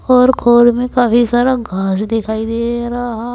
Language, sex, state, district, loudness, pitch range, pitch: Hindi, female, Uttar Pradesh, Saharanpur, -14 LUFS, 225-245 Hz, 240 Hz